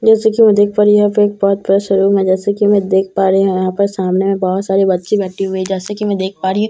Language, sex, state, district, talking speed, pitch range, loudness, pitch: Hindi, female, Bihar, Katihar, 340 wpm, 190-205 Hz, -14 LUFS, 195 Hz